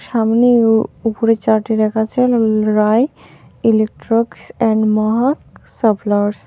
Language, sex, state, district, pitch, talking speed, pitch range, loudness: Bengali, female, West Bengal, Alipurduar, 220 Hz, 110 wpm, 215-230 Hz, -15 LUFS